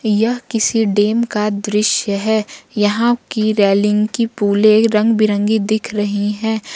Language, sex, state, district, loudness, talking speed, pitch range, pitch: Hindi, female, Jharkhand, Ranchi, -16 LUFS, 135 wpm, 210-225 Hz, 215 Hz